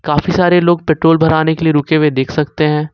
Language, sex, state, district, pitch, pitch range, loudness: Hindi, male, Jharkhand, Ranchi, 155 Hz, 150-165 Hz, -13 LUFS